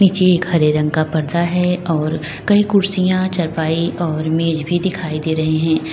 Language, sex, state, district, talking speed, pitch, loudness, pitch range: Hindi, female, Uttar Pradesh, Lalitpur, 180 wpm, 165 Hz, -17 LUFS, 160-180 Hz